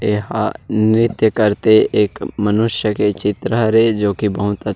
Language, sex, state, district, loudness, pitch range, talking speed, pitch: Chhattisgarhi, male, Chhattisgarh, Rajnandgaon, -16 LUFS, 105-110 Hz, 165 wpm, 105 Hz